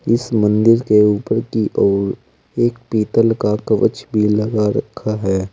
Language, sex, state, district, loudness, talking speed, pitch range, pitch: Hindi, male, Uttar Pradesh, Saharanpur, -16 LUFS, 150 wpm, 105-115 Hz, 110 Hz